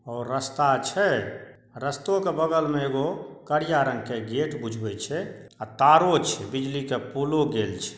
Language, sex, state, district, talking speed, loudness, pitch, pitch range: Maithili, male, Bihar, Saharsa, 165 wpm, -25 LUFS, 135 Hz, 120-150 Hz